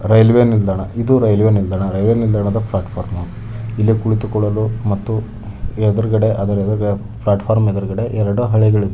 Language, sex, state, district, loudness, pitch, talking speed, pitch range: Kannada, male, Karnataka, Dharwad, -16 LUFS, 110 Hz, 115 wpm, 100-110 Hz